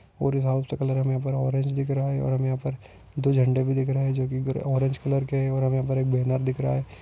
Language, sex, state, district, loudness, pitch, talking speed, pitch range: Hindi, male, Maharashtra, Solapur, -25 LUFS, 135 Hz, 315 wpm, 130-135 Hz